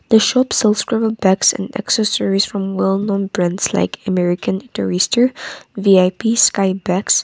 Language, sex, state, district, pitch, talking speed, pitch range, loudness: English, female, Nagaland, Kohima, 200 Hz, 125 wpm, 190-220 Hz, -16 LUFS